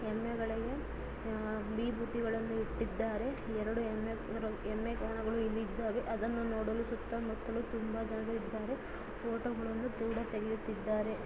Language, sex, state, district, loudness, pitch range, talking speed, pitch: Kannada, female, Karnataka, Dakshina Kannada, -38 LUFS, 220-230 Hz, 45 wpm, 225 Hz